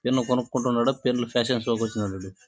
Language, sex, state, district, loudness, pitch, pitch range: Telugu, male, Andhra Pradesh, Chittoor, -25 LUFS, 120 Hz, 115-125 Hz